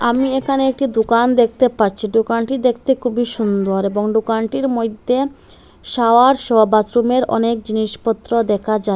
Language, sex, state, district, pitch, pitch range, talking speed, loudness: Bengali, female, Assam, Hailakandi, 230 Hz, 220-250 Hz, 135 wpm, -16 LUFS